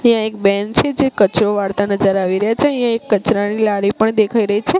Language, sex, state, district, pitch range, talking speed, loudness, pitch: Gujarati, female, Gujarat, Gandhinagar, 200-225 Hz, 240 wpm, -15 LUFS, 210 Hz